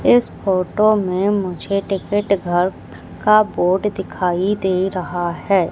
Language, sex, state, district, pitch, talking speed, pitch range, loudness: Hindi, female, Madhya Pradesh, Katni, 195 Hz, 125 wpm, 180-205 Hz, -18 LUFS